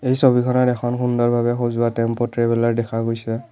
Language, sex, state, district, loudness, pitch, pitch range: Assamese, male, Assam, Kamrup Metropolitan, -19 LUFS, 120 Hz, 115-125 Hz